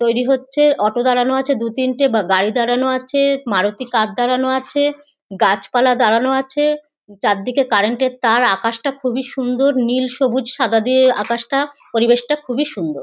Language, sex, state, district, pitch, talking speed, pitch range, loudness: Bengali, female, West Bengal, North 24 Parganas, 255 Hz, 150 wpm, 230-270 Hz, -17 LUFS